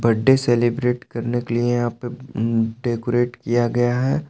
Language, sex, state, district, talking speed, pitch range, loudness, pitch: Hindi, male, Jharkhand, Palamu, 165 wpm, 120-125 Hz, -21 LUFS, 120 Hz